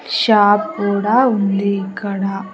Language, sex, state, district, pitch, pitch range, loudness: Telugu, female, Andhra Pradesh, Sri Satya Sai, 200 Hz, 195-215 Hz, -16 LUFS